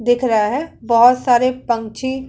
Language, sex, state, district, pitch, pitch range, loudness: Hindi, female, Uttar Pradesh, Hamirpur, 245 Hz, 230-260 Hz, -16 LUFS